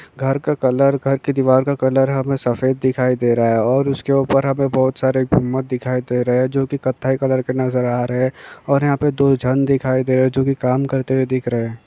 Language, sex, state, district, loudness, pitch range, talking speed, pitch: Hindi, male, Bihar, Kishanganj, -18 LUFS, 125-135 Hz, 260 wpm, 130 Hz